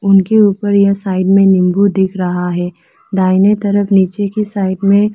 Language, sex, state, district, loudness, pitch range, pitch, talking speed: Hindi, female, Arunachal Pradesh, Lower Dibang Valley, -12 LUFS, 185-200 Hz, 195 Hz, 175 wpm